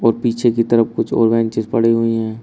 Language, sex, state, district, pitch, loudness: Hindi, male, Uttar Pradesh, Shamli, 115 Hz, -16 LUFS